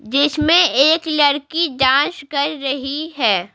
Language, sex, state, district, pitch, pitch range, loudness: Hindi, female, Bihar, Patna, 285 Hz, 275-310 Hz, -16 LUFS